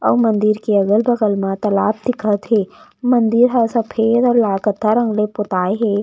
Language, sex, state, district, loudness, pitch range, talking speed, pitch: Chhattisgarhi, female, Chhattisgarh, Raigarh, -16 LUFS, 205-230 Hz, 180 wpm, 215 Hz